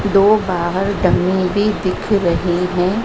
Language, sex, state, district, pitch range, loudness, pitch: Hindi, female, Madhya Pradesh, Dhar, 180-205 Hz, -16 LUFS, 190 Hz